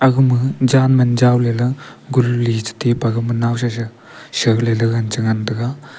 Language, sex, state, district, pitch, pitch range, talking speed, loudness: Wancho, male, Arunachal Pradesh, Longding, 120 Hz, 115-130 Hz, 150 wpm, -17 LUFS